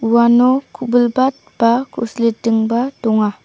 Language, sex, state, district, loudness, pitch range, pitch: Garo, female, Meghalaya, South Garo Hills, -15 LUFS, 230-250 Hz, 235 Hz